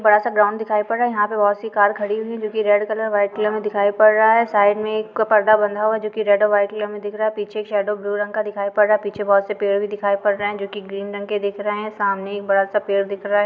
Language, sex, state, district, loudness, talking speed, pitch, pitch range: Hindi, female, Chhattisgarh, Jashpur, -19 LUFS, 330 wpm, 210 Hz, 205-215 Hz